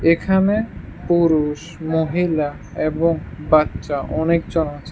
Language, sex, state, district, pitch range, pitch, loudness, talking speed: Bengali, male, Tripura, West Tripura, 155-170 Hz, 160 Hz, -19 LUFS, 85 wpm